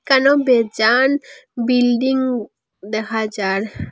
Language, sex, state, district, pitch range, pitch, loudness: Bengali, female, Assam, Hailakandi, 220-265 Hz, 245 Hz, -17 LUFS